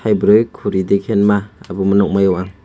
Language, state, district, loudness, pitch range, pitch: Kokborok, Tripura, West Tripura, -15 LUFS, 95-105 Hz, 100 Hz